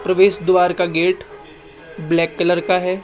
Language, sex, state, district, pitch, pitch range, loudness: Hindi, male, Rajasthan, Jaipur, 180 Hz, 175-190 Hz, -17 LUFS